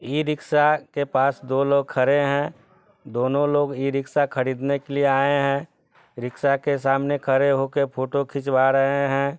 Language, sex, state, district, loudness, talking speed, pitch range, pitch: Hindi, male, Bihar, Sitamarhi, -22 LUFS, 160 wpm, 135-145 Hz, 140 Hz